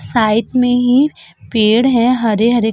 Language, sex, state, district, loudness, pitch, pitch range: Hindi, female, Uttar Pradesh, Budaun, -13 LUFS, 235 Hz, 220-250 Hz